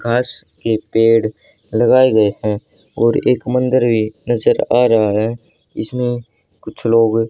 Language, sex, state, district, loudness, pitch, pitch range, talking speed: Hindi, male, Haryana, Charkhi Dadri, -16 LUFS, 115 Hz, 110-120 Hz, 140 wpm